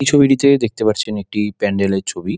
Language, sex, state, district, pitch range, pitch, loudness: Bengali, male, West Bengal, Dakshin Dinajpur, 105-135 Hz, 110 Hz, -16 LUFS